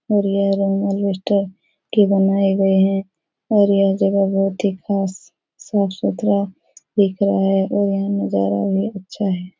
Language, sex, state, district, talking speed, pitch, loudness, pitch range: Hindi, female, Bihar, Araria, 155 wpm, 195 Hz, -18 LUFS, 195-200 Hz